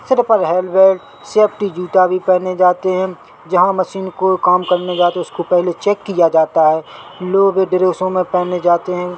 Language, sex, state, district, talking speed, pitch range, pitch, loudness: Hindi, male, Chhattisgarh, Bilaspur, 170 wpm, 180-190 Hz, 185 Hz, -15 LUFS